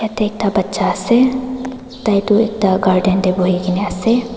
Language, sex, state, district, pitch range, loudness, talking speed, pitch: Nagamese, female, Nagaland, Dimapur, 190-235 Hz, -16 LUFS, 165 wpm, 210 Hz